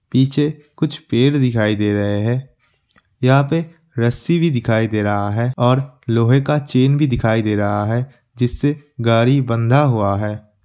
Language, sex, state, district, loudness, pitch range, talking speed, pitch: Hindi, male, Bihar, Kishanganj, -17 LUFS, 110-140 Hz, 170 wpm, 125 Hz